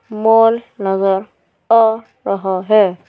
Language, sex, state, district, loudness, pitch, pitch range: Hindi, female, Madhya Pradesh, Bhopal, -15 LUFS, 205 Hz, 190-225 Hz